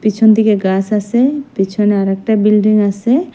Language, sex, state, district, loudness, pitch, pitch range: Bengali, female, Assam, Hailakandi, -13 LUFS, 210 Hz, 200-220 Hz